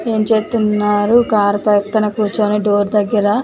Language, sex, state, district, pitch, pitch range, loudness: Telugu, female, Telangana, Nalgonda, 210 Hz, 205-220 Hz, -15 LUFS